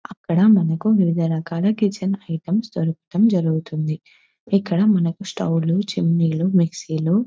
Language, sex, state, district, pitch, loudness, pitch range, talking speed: Telugu, female, Telangana, Nalgonda, 180 Hz, -20 LUFS, 165-200 Hz, 130 wpm